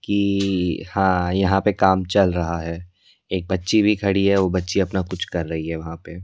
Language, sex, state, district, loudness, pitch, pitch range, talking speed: Hindi, male, Delhi, New Delhi, -21 LUFS, 95 Hz, 85-100 Hz, 210 wpm